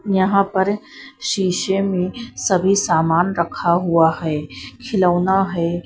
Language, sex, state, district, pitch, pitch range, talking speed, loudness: Hindi, female, Bihar, Katihar, 190 Hz, 170-195 Hz, 115 wpm, -18 LUFS